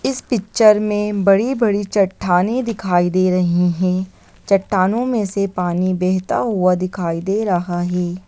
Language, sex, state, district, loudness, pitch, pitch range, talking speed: Hindi, female, Bihar, Lakhisarai, -17 LUFS, 185 Hz, 180-210 Hz, 140 wpm